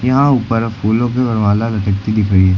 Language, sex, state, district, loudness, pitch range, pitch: Hindi, male, Uttar Pradesh, Lucknow, -15 LUFS, 105-120 Hz, 110 Hz